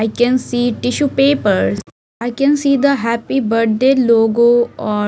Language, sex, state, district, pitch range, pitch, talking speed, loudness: English, female, Haryana, Jhajjar, 230-270 Hz, 245 Hz, 165 wpm, -14 LUFS